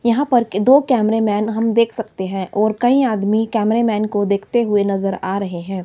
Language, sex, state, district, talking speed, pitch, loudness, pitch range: Hindi, female, Himachal Pradesh, Shimla, 225 wpm, 215 Hz, -17 LUFS, 200-230 Hz